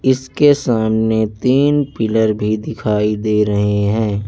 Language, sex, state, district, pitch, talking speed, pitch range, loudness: Hindi, male, Madhya Pradesh, Bhopal, 110 Hz, 125 wpm, 105-130 Hz, -16 LUFS